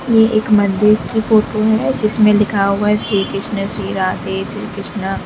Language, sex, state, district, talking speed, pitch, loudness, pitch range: Hindi, female, Uttar Pradesh, Lalitpur, 170 wpm, 210 Hz, -15 LUFS, 195-215 Hz